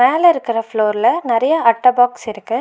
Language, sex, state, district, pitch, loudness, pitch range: Tamil, female, Tamil Nadu, Nilgiris, 235 Hz, -15 LUFS, 225-315 Hz